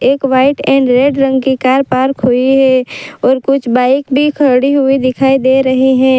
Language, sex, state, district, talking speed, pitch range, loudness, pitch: Hindi, female, Gujarat, Valsad, 195 wpm, 260-270 Hz, -11 LUFS, 265 Hz